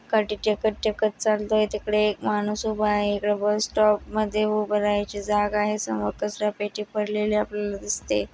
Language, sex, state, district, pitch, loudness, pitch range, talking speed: Marathi, female, Maharashtra, Dhule, 210 Hz, -24 LUFS, 205-215 Hz, 165 wpm